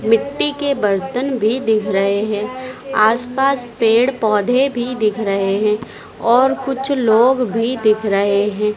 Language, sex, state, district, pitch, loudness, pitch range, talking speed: Hindi, female, Madhya Pradesh, Dhar, 225 Hz, -17 LUFS, 210-255 Hz, 145 wpm